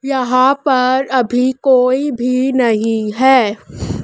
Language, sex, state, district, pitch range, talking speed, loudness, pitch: Hindi, female, Madhya Pradesh, Dhar, 245-265 Hz, 105 wpm, -14 LUFS, 255 Hz